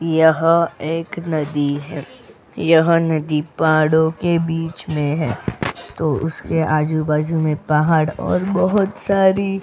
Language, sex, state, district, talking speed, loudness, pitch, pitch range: Hindi, female, Goa, North and South Goa, 125 wpm, -18 LUFS, 160 Hz, 155-170 Hz